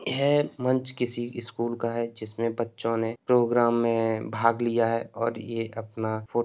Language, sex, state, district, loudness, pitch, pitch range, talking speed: Hindi, male, Uttar Pradesh, Etah, -27 LUFS, 115 Hz, 115-120 Hz, 175 wpm